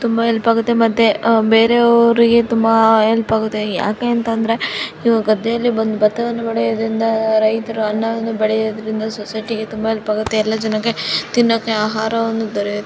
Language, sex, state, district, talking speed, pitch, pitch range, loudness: Kannada, female, Karnataka, Dharwad, 115 wpm, 225 Hz, 220-230 Hz, -16 LUFS